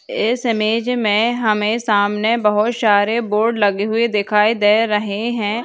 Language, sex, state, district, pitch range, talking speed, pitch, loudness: Hindi, female, Bihar, Saharsa, 210-230 Hz, 150 wpm, 215 Hz, -17 LUFS